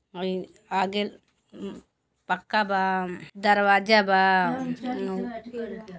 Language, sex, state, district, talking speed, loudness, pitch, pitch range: Bhojpuri, female, Uttar Pradesh, Deoria, 80 wpm, -24 LUFS, 195 Hz, 185-215 Hz